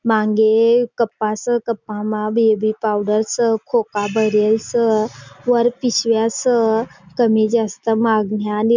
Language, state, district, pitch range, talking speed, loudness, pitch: Bhili, Maharashtra, Dhule, 215-235 Hz, 130 wpm, -18 LUFS, 220 Hz